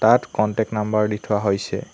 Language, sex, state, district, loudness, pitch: Assamese, male, Assam, Hailakandi, -21 LUFS, 105 Hz